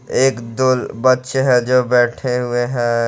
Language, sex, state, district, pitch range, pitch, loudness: Hindi, male, Jharkhand, Garhwa, 120-130 Hz, 125 Hz, -16 LUFS